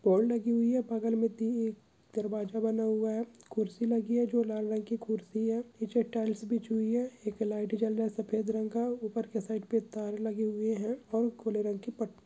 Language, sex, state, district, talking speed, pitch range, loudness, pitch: Hindi, male, Chhattisgarh, Kabirdham, 230 wpm, 215-230 Hz, -32 LUFS, 225 Hz